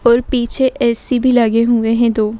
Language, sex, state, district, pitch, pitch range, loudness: Hindi, female, Uttar Pradesh, Etah, 235 Hz, 230-250 Hz, -14 LUFS